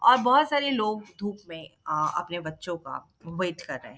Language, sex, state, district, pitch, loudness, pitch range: Hindi, female, Bihar, Jahanabad, 185 Hz, -27 LUFS, 170-220 Hz